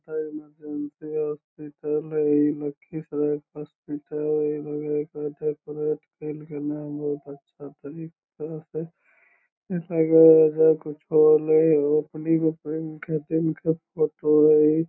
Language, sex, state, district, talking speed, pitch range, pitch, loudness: Magahi, male, Bihar, Lakhisarai, 130 wpm, 150-160 Hz, 150 Hz, -23 LUFS